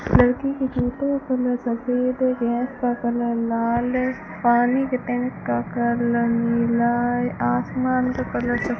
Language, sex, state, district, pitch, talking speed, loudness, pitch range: Hindi, female, Rajasthan, Bikaner, 245 Hz, 165 wpm, -22 LUFS, 235-255 Hz